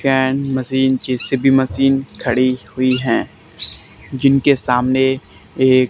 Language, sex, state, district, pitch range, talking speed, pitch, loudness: Hindi, male, Haryana, Charkhi Dadri, 125-135 Hz, 100 wpm, 130 Hz, -16 LUFS